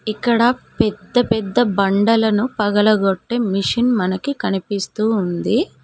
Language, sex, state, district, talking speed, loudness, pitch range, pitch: Telugu, female, Telangana, Mahabubabad, 80 wpm, -18 LUFS, 200-240 Hz, 215 Hz